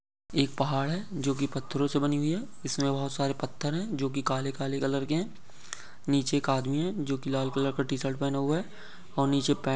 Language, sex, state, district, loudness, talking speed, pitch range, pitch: Hindi, male, Maharashtra, Aurangabad, -30 LUFS, 220 wpm, 135-145 Hz, 140 Hz